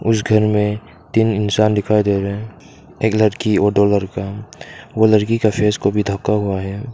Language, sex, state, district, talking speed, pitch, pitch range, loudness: Hindi, male, Arunachal Pradesh, Papum Pare, 190 wpm, 105 Hz, 100-110 Hz, -17 LUFS